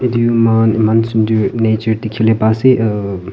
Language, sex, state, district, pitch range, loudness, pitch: Nagamese, male, Nagaland, Kohima, 110-115 Hz, -13 LUFS, 110 Hz